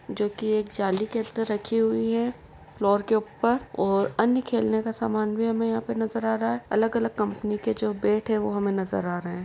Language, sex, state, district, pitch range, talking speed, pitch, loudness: Hindi, female, Uttar Pradesh, Etah, 210-230 Hz, 240 wpm, 220 Hz, -26 LUFS